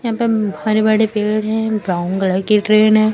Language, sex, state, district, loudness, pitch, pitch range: Hindi, female, Uttar Pradesh, Lucknow, -16 LUFS, 215 Hz, 210-220 Hz